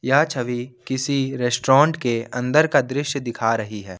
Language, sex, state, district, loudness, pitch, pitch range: Hindi, male, Jharkhand, Ranchi, -21 LUFS, 130 Hz, 120-140 Hz